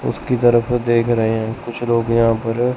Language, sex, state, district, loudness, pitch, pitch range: Hindi, male, Chandigarh, Chandigarh, -17 LUFS, 120 Hz, 115-120 Hz